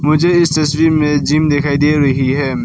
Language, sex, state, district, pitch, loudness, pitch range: Hindi, male, Arunachal Pradesh, Lower Dibang Valley, 150 Hz, -13 LUFS, 145-155 Hz